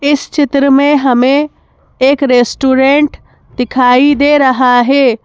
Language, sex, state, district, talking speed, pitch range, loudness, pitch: Hindi, female, Madhya Pradesh, Bhopal, 115 wpm, 255-285 Hz, -10 LUFS, 270 Hz